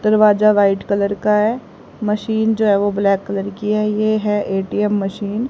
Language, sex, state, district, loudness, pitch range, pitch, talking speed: Hindi, female, Haryana, Jhajjar, -17 LUFS, 200-215 Hz, 210 Hz, 195 wpm